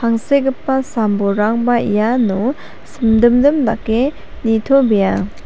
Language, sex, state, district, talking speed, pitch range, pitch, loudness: Garo, female, Meghalaya, South Garo Hills, 65 wpm, 215-265 Hz, 230 Hz, -15 LUFS